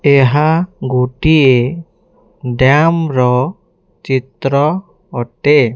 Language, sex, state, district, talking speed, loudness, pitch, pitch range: Hindi, male, Odisha, Nuapada, 75 wpm, -13 LUFS, 145 Hz, 130-165 Hz